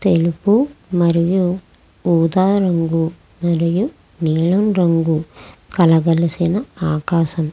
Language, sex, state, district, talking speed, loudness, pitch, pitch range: Telugu, female, Andhra Pradesh, Krishna, 70 wpm, -17 LUFS, 170 Hz, 165-185 Hz